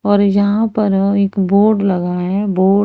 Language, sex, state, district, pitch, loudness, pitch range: Hindi, female, Haryana, Rohtak, 200 Hz, -14 LUFS, 195-205 Hz